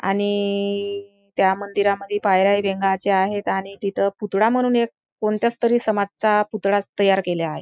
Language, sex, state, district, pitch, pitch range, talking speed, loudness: Marathi, female, Maharashtra, Chandrapur, 200 Hz, 195-210 Hz, 135 wpm, -21 LUFS